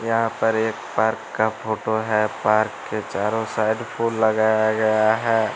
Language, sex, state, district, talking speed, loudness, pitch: Hindi, male, Bihar, Araria, 160 wpm, -21 LUFS, 110 Hz